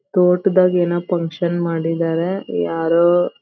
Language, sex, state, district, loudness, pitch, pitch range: Kannada, female, Karnataka, Belgaum, -18 LUFS, 175 Hz, 165-180 Hz